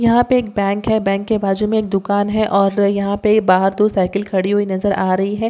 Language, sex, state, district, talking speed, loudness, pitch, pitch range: Hindi, female, Andhra Pradesh, Chittoor, 240 wpm, -16 LUFS, 200 Hz, 195-215 Hz